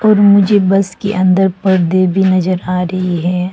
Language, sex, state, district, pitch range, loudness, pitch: Hindi, female, Arunachal Pradesh, Longding, 180-195 Hz, -12 LUFS, 185 Hz